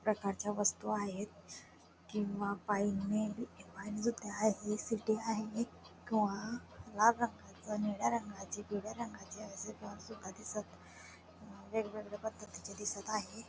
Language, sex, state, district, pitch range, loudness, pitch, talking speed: Marathi, female, Maharashtra, Dhule, 205-220 Hz, -38 LUFS, 210 Hz, 75 wpm